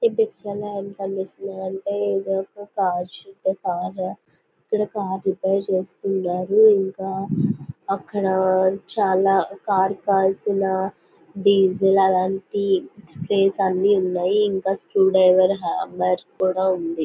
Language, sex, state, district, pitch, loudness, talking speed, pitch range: Telugu, female, Andhra Pradesh, Visakhapatnam, 195 Hz, -21 LUFS, 110 wpm, 185-200 Hz